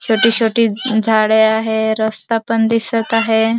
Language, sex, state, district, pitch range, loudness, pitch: Marathi, female, Maharashtra, Dhule, 220-225 Hz, -15 LUFS, 225 Hz